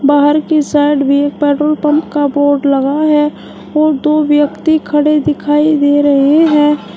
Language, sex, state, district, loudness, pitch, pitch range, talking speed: Hindi, female, Uttar Pradesh, Shamli, -11 LUFS, 295 Hz, 285-300 Hz, 165 wpm